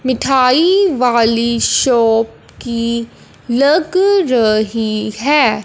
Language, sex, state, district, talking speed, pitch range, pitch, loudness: Hindi, female, Punjab, Fazilka, 75 wpm, 230-285 Hz, 240 Hz, -13 LUFS